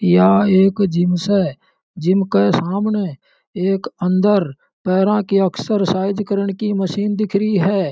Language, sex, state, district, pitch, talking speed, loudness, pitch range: Marwari, male, Rajasthan, Churu, 195 Hz, 135 wpm, -17 LUFS, 180-205 Hz